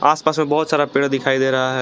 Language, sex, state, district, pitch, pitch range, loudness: Hindi, male, Jharkhand, Garhwa, 140 Hz, 135-155 Hz, -18 LUFS